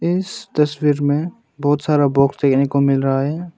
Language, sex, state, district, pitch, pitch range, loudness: Hindi, male, Arunachal Pradesh, Longding, 145 Hz, 140-160 Hz, -18 LUFS